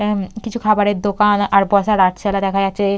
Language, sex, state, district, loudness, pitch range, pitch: Bengali, female, West Bengal, Purulia, -16 LUFS, 195-210 Hz, 200 Hz